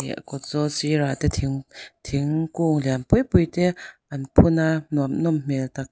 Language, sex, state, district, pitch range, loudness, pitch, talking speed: Mizo, female, Mizoram, Aizawl, 140-160 Hz, -22 LUFS, 150 Hz, 190 wpm